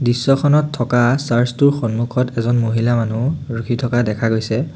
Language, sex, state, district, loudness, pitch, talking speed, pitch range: Assamese, male, Assam, Sonitpur, -17 LUFS, 120 Hz, 150 wpm, 115-135 Hz